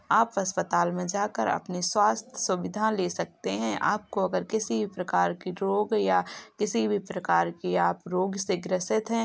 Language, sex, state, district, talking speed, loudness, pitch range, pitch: Hindi, male, Uttar Pradesh, Jalaun, 170 wpm, -27 LUFS, 180-210 Hz, 195 Hz